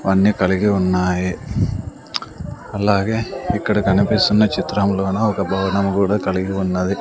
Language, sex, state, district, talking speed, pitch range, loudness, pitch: Telugu, male, Andhra Pradesh, Sri Satya Sai, 105 wpm, 95-105 Hz, -18 LUFS, 100 Hz